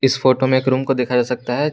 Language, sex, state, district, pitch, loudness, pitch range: Hindi, male, Jharkhand, Garhwa, 130 Hz, -18 LUFS, 125-135 Hz